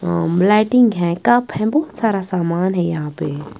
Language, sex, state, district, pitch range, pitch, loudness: Hindi, female, Bihar, West Champaran, 170-220 Hz, 185 Hz, -17 LUFS